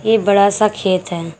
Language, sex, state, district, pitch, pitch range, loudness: Hindi, female, Jharkhand, Garhwa, 200 Hz, 180-210 Hz, -15 LUFS